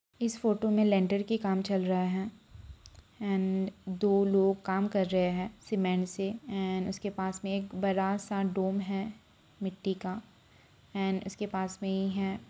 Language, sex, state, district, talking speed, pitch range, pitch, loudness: Hindi, female, Uttar Pradesh, Budaun, 170 wpm, 190-200 Hz, 195 Hz, -31 LUFS